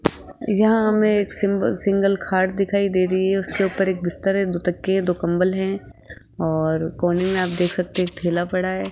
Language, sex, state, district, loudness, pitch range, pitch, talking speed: Hindi, female, Rajasthan, Jaipur, -21 LUFS, 175-195 Hz, 185 Hz, 200 wpm